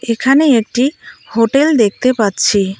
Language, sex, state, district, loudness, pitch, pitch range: Bengali, female, West Bengal, Cooch Behar, -13 LUFS, 235 Hz, 215-270 Hz